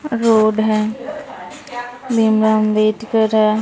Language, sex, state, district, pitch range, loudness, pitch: Hindi, female, Bihar, Supaul, 215-245 Hz, -15 LUFS, 220 Hz